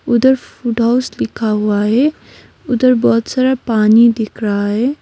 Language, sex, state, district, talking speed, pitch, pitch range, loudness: Hindi, female, West Bengal, Darjeeling, 145 wpm, 235 Hz, 210-255 Hz, -14 LUFS